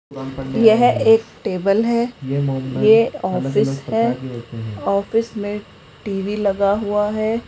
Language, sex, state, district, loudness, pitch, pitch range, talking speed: Hindi, female, Rajasthan, Jaipur, -18 LUFS, 200 Hz, 135-220 Hz, 105 wpm